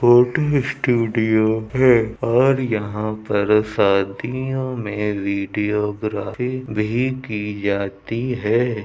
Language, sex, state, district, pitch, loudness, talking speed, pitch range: Hindi, male, Uttar Pradesh, Budaun, 110 Hz, -20 LUFS, 90 wpm, 105-125 Hz